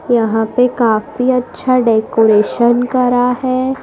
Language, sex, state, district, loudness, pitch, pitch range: Hindi, female, Madhya Pradesh, Dhar, -13 LUFS, 245 Hz, 225-255 Hz